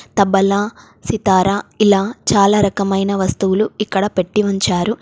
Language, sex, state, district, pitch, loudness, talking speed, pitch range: Telugu, female, Telangana, Komaram Bheem, 200 Hz, -16 LUFS, 110 wpm, 195-210 Hz